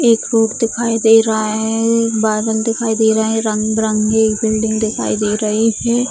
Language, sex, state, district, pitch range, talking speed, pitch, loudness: Hindi, female, Bihar, Sitamarhi, 220-225 Hz, 185 wpm, 220 Hz, -15 LUFS